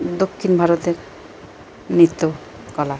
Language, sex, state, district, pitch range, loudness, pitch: Bengali, male, Jharkhand, Jamtara, 150-175 Hz, -18 LUFS, 170 Hz